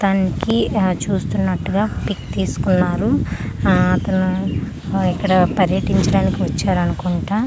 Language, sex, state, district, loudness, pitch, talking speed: Telugu, female, Andhra Pradesh, Manyam, -18 LUFS, 185 Hz, 95 wpm